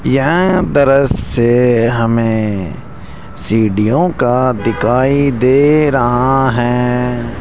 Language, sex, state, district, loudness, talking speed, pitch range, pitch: Hindi, male, Rajasthan, Jaipur, -13 LUFS, 75 wpm, 115-135 Hz, 125 Hz